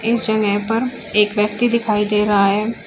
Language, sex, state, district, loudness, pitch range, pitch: Hindi, female, Uttar Pradesh, Shamli, -17 LUFS, 210-230 Hz, 210 Hz